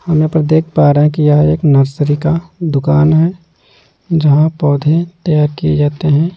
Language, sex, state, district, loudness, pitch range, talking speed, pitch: Hindi, male, Delhi, New Delhi, -12 LUFS, 150-165 Hz, 190 wpm, 155 Hz